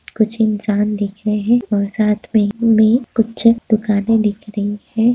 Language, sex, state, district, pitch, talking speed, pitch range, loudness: Hindi, female, Bihar, Madhepura, 215 Hz, 150 wpm, 210-225 Hz, -16 LUFS